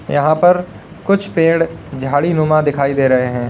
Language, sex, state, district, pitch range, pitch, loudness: Hindi, male, Uttar Pradesh, Lalitpur, 140-165 Hz, 155 Hz, -15 LUFS